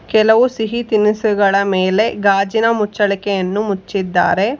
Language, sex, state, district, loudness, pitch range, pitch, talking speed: Kannada, female, Karnataka, Bangalore, -15 LUFS, 195-220 Hz, 205 Hz, 90 wpm